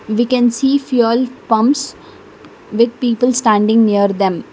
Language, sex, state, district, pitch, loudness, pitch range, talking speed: English, female, Karnataka, Bangalore, 235 Hz, -14 LUFS, 215-250 Hz, 130 wpm